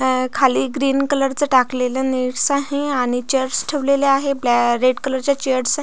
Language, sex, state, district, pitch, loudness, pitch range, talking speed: Marathi, female, Maharashtra, Pune, 265 Hz, -18 LUFS, 255-280 Hz, 185 wpm